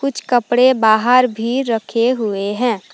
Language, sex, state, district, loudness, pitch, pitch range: Hindi, female, Jharkhand, Palamu, -15 LUFS, 240 Hz, 220-250 Hz